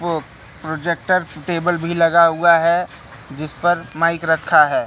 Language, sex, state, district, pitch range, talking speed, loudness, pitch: Hindi, male, Madhya Pradesh, Katni, 155-175 Hz, 150 wpm, -17 LUFS, 165 Hz